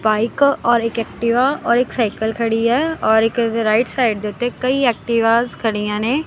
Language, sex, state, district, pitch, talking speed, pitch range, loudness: Punjabi, female, Punjab, Kapurthala, 230 Hz, 190 wpm, 225-245 Hz, -17 LUFS